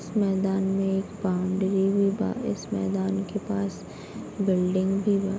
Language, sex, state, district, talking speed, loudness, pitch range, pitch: Bhojpuri, female, Bihar, Gopalganj, 180 wpm, -26 LUFS, 190-200 Hz, 195 Hz